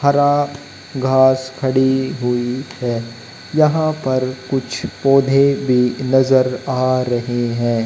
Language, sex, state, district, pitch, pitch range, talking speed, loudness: Hindi, male, Haryana, Jhajjar, 130 Hz, 125-135 Hz, 105 wpm, -17 LUFS